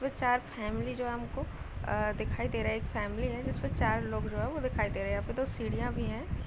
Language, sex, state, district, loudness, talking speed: Hindi, female, Uttar Pradesh, Deoria, -34 LUFS, 270 wpm